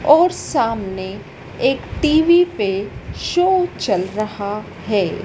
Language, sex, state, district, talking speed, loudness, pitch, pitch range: Hindi, female, Madhya Pradesh, Dhar, 105 wpm, -18 LUFS, 215 Hz, 200-320 Hz